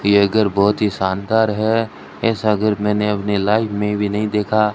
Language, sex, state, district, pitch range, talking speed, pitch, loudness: Hindi, male, Rajasthan, Bikaner, 105-110 Hz, 190 wpm, 105 Hz, -18 LUFS